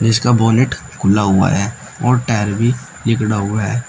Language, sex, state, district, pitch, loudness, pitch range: Hindi, male, Uttar Pradesh, Shamli, 115 Hz, -16 LUFS, 105-120 Hz